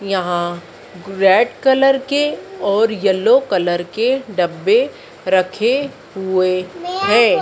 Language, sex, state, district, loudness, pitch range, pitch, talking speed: Hindi, female, Madhya Pradesh, Dhar, -16 LUFS, 185-270 Hz, 200 Hz, 95 wpm